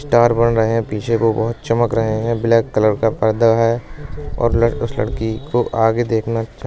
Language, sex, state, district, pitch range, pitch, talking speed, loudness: Bundeli, male, Uttar Pradesh, Budaun, 110-115 Hz, 115 Hz, 215 wpm, -17 LUFS